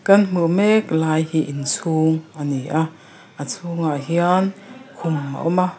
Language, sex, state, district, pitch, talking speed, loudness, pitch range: Mizo, female, Mizoram, Aizawl, 165 Hz, 165 wpm, -20 LUFS, 155-185 Hz